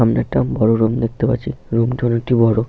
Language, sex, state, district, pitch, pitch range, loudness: Bengali, male, West Bengal, Paschim Medinipur, 115 Hz, 115-120 Hz, -18 LUFS